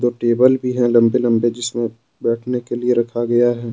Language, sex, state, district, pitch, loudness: Hindi, male, Jharkhand, Deoghar, 120 Hz, -17 LUFS